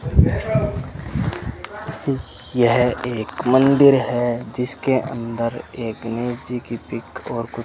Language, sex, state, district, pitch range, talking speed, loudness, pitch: Hindi, male, Rajasthan, Bikaner, 115-130 Hz, 110 wpm, -21 LUFS, 120 Hz